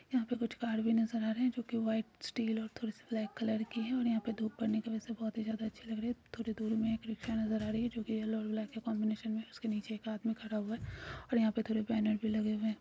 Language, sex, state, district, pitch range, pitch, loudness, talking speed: Hindi, female, Chhattisgarh, Jashpur, 220-230 Hz, 225 Hz, -37 LUFS, 325 wpm